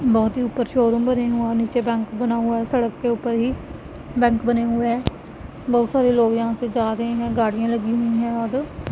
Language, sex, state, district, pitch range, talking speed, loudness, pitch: Hindi, female, Punjab, Pathankot, 230-240 Hz, 215 wpm, -21 LUFS, 235 Hz